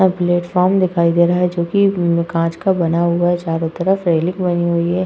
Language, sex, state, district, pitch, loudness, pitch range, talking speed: Hindi, female, Uttar Pradesh, Hamirpur, 175 Hz, -16 LUFS, 170-180 Hz, 215 wpm